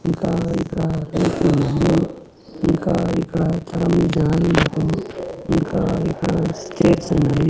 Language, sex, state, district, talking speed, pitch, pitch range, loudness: Telugu, male, Andhra Pradesh, Annamaya, 95 wpm, 165 Hz, 160-170 Hz, -19 LUFS